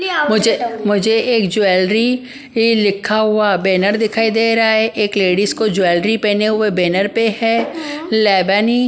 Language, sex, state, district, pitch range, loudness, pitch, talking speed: Hindi, female, Punjab, Pathankot, 200-225 Hz, -15 LUFS, 215 Hz, 155 wpm